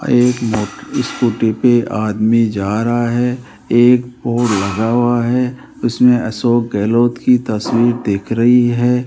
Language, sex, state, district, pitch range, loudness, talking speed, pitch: Hindi, male, Rajasthan, Jaipur, 110-125 Hz, -15 LUFS, 145 wpm, 120 Hz